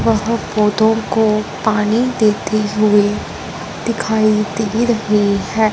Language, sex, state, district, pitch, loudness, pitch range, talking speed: Hindi, female, Punjab, Fazilka, 215 Hz, -16 LUFS, 210-225 Hz, 105 wpm